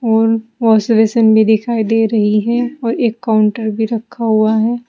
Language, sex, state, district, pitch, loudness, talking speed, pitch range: Hindi, female, Uttar Pradesh, Saharanpur, 225 Hz, -14 LUFS, 185 wpm, 220-230 Hz